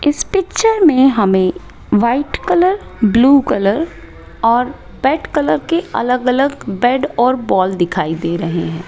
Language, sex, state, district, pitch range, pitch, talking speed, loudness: Hindi, female, Rajasthan, Jaipur, 195-290 Hz, 245 Hz, 140 wpm, -15 LUFS